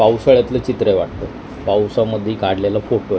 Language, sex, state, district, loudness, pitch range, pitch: Marathi, male, Maharashtra, Mumbai Suburban, -17 LUFS, 100-110 Hz, 105 Hz